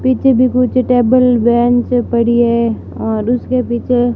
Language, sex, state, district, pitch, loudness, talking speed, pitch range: Hindi, female, Rajasthan, Barmer, 245 Hz, -13 LUFS, 145 wpm, 235-250 Hz